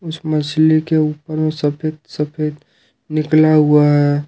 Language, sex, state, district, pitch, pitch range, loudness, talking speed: Hindi, male, Jharkhand, Ranchi, 155 Hz, 150-155 Hz, -16 LUFS, 140 wpm